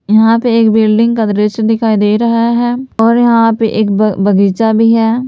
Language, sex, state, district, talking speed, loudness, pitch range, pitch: Hindi, female, Jharkhand, Palamu, 195 wpm, -10 LUFS, 215-230 Hz, 225 Hz